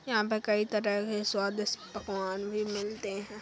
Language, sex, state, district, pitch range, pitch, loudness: Hindi, female, Uttar Pradesh, Jalaun, 205-210 Hz, 210 Hz, -32 LUFS